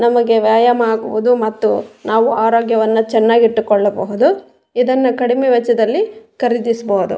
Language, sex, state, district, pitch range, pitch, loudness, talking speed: Kannada, female, Karnataka, Raichur, 220-245 Hz, 230 Hz, -14 LUFS, 100 wpm